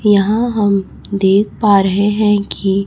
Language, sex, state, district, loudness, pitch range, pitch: Hindi, female, Chhattisgarh, Raipur, -14 LUFS, 195-210 Hz, 200 Hz